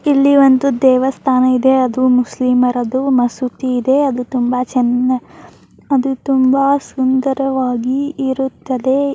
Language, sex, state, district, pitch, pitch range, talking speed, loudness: Kannada, female, Karnataka, Bijapur, 260 Hz, 250-270 Hz, 100 wpm, -15 LUFS